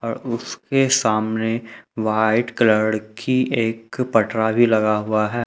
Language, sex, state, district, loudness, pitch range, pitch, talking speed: Hindi, male, Jharkhand, Ranchi, -20 LUFS, 110-120 Hz, 115 Hz, 130 wpm